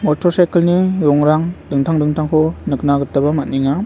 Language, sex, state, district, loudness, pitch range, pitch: Garo, male, Meghalaya, West Garo Hills, -15 LUFS, 145-175 Hz, 155 Hz